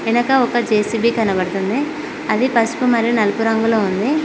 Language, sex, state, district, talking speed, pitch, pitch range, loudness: Telugu, female, Telangana, Mahabubabad, 140 wpm, 230 Hz, 215-245 Hz, -17 LUFS